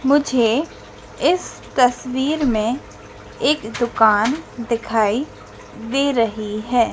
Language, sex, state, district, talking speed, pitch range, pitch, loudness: Hindi, female, Madhya Pradesh, Dhar, 85 wpm, 225-270 Hz, 240 Hz, -19 LUFS